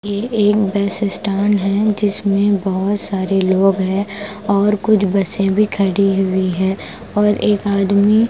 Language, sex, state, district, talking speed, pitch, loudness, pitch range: Hindi, female, Punjab, Pathankot, 145 wpm, 200 Hz, -16 LUFS, 195-205 Hz